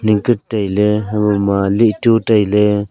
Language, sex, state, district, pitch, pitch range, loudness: Wancho, male, Arunachal Pradesh, Longding, 105 Hz, 105-110 Hz, -14 LUFS